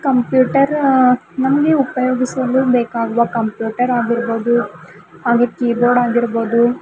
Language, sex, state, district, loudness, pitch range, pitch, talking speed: Kannada, female, Karnataka, Bidar, -16 LUFS, 235-260 Hz, 245 Hz, 90 wpm